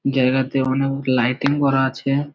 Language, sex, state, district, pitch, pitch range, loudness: Bengali, male, West Bengal, Malda, 135 Hz, 130-135 Hz, -19 LUFS